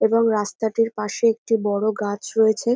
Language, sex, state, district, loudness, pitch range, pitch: Bengali, female, West Bengal, North 24 Parganas, -21 LUFS, 210-230 Hz, 220 Hz